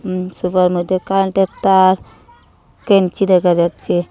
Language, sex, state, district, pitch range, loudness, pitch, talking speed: Bengali, female, Assam, Hailakandi, 180-195 Hz, -15 LUFS, 185 Hz, 130 wpm